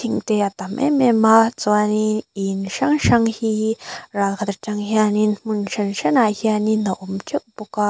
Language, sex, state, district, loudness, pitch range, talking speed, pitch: Mizo, female, Mizoram, Aizawl, -19 LUFS, 200-220 Hz, 190 wpm, 215 Hz